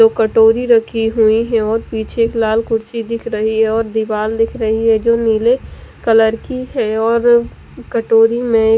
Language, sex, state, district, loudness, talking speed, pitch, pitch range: Hindi, female, Punjab, Fazilka, -15 LUFS, 185 wpm, 225 Hz, 220-230 Hz